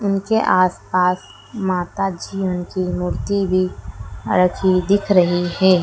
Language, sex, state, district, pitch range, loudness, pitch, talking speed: Hindi, female, Madhya Pradesh, Dhar, 180-195 Hz, -19 LUFS, 185 Hz, 125 wpm